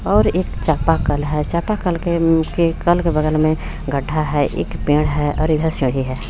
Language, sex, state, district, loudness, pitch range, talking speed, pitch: Hindi, female, Jharkhand, Garhwa, -18 LUFS, 145-165 Hz, 200 wpm, 155 Hz